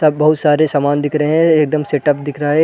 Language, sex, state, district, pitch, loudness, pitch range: Hindi, male, Bihar, Gaya, 150 Hz, -14 LUFS, 145-155 Hz